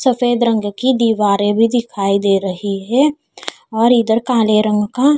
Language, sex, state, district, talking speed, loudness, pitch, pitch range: Hindi, female, Haryana, Charkhi Dadri, 160 wpm, -15 LUFS, 225 Hz, 205-245 Hz